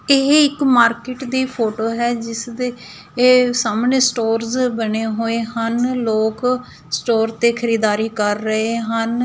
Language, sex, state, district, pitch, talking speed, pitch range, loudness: Punjabi, female, Punjab, Fazilka, 235 Hz, 130 wpm, 225-250 Hz, -18 LUFS